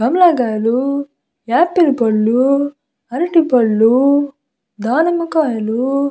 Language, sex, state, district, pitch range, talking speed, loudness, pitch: Telugu, female, Andhra Pradesh, Visakhapatnam, 235-295 Hz, 60 wpm, -15 LUFS, 275 Hz